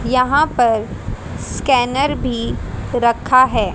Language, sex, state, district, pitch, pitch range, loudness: Hindi, female, Haryana, Rohtak, 240 Hz, 190-255 Hz, -16 LUFS